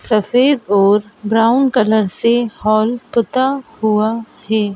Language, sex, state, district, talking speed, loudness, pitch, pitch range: Hindi, male, Madhya Pradesh, Bhopal, 115 wpm, -15 LUFS, 220 Hz, 215-240 Hz